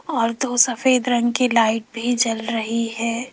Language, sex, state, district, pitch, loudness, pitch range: Hindi, female, Rajasthan, Jaipur, 235 Hz, -20 LUFS, 230-245 Hz